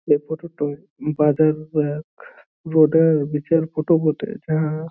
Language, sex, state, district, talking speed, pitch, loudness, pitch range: Bengali, male, West Bengal, Jhargram, 110 wpm, 155 Hz, -20 LUFS, 150-160 Hz